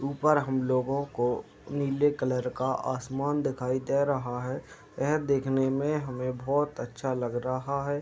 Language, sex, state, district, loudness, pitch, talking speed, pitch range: Hindi, male, Uttar Pradesh, Deoria, -29 LUFS, 135 Hz, 155 wpm, 130-140 Hz